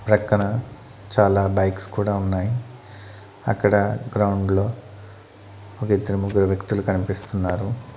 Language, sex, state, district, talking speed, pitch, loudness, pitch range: Telugu, male, Andhra Pradesh, Annamaya, 85 wpm, 100 Hz, -22 LUFS, 100-110 Hz